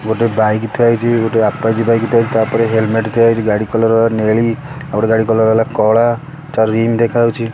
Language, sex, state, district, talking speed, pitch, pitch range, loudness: Odia, male, Odisha, Khordha, 205 wpm, 115 Hz, 110-115 Hz, -14 LUFS